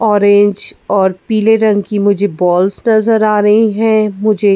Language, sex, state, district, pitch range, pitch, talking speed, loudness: Hindi, female, Madhya Pradesh, Bhopal, 200-220 Hz, 210 Hz, 160 wpm, -12 LUFS